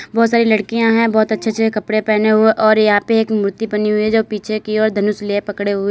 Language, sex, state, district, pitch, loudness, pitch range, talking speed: Hindi, female, Uttar Pradesh, Lalitpur, 215 Hz, -15 LUFS, 210-220 Hz, 265 wpm